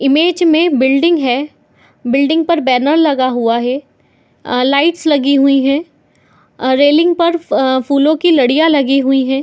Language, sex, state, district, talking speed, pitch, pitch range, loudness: Hindi, female, Bihar, Madhepura, 150 wpm, 280 Hz, 265-320 Hz, -12 LUFS